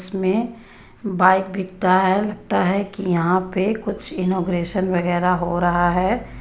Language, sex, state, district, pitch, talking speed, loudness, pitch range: Hindi, female, Jharkhand, Ranchi, 185 Hz, 140 wpm, -20 LUFS, 180-195 Hz